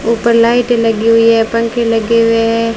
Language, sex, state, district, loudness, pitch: Hindi, female, Rajasthan, Bikaner, -11 LUFS, 230 Hz